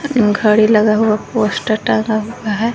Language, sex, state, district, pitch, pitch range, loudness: Hindi, female, Jharkhand, Garhwa, 215 Hz, 215-225 Hz, -14 LUFS